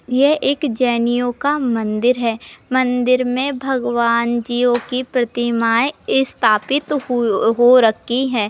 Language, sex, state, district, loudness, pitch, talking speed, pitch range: Hindi, female, Uttar Pradesh, Budaun, -17 LUFS, 245 Hz, 115 wpm, 235-265 Hz